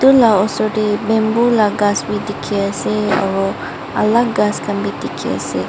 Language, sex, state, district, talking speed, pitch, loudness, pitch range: Nagamese, female, Mizoram, Aizawl, 170 wpm, 210 Hz, -16 LUFS, 205-220 Hz